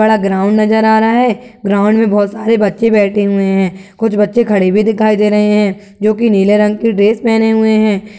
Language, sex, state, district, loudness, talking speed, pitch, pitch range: Hindi, male, Uttar Pradesh, Gorakhpur, -12 LUFS, 225 wpm, 210 Hz, 205-220 Hz